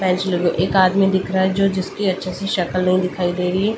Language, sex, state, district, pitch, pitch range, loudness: Hindi, female, Delhi, New Delhi, 185 Hz, 180-190 Hz, -19 LUFS